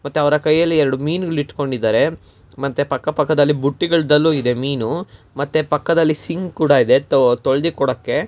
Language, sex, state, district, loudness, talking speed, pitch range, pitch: Kannada, male, Karnataka, Mysore, -17 LUFS, 125 wpm, 140-160 Hz, 150 Hz